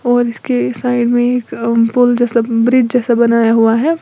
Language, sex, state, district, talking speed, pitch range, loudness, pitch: Hindi, female, Uttar Pradesh, Lalitpur, 180 wpm, 230-245 Hz, -13 LUFS, 240 Hz